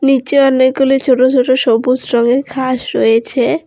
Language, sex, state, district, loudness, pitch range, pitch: Bengali, female, West Bengal, Alipurduar, -12 LUFS, 250-270 Hz, 260 Hz